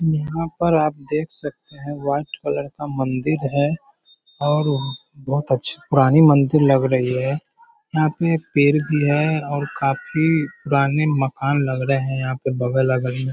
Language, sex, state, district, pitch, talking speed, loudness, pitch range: Hindi, male, Bihar, Darbhanga, 145 Hz, 160 wpm, -20 LUFS, 135-155 Hz